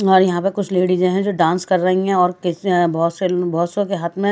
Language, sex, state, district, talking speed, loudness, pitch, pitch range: Hindi, female, Maharashtra, Washim, 250 wpm, -18 LUFS, 185 Hz, 175-195 Hz